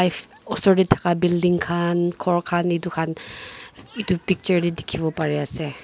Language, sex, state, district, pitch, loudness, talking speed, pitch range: Nagamese, female, Nagaland, Dimapur, 175 Hz, -22 LUFS, 165 wpm, 160-180 Hz